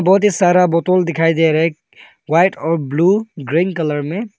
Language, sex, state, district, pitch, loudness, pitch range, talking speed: Hindi, male, Arunachal Pradesh, Longding, 170 Hz, -15 LUFS, 160-185 Hz, 190 wpm